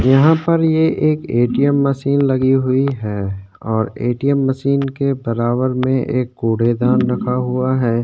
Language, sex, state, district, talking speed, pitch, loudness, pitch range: Hindi, male, Uttarakhand, Tehri Garhwal, 155 wpm, 130 Hz, -17 LUFS, 120-140 Hz